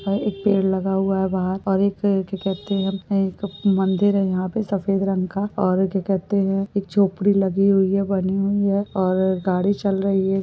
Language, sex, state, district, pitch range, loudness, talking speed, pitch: Hindi, female, Goa, North and South Goa, 190-200 Hz, -21 LUFS, 215 wpm, 195 Hz